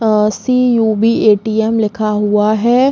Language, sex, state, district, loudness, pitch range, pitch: Hindi, female, Uttar Pradesh, Jalaun, -13 LUFS, 210-230 Hz, 220 Hz